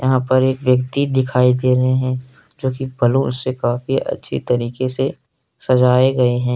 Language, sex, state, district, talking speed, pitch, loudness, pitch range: Hindi, male, Jharkhand, Deoghar, 175 wpm, 130 Hz, -17 LUFS, 125-130 Hz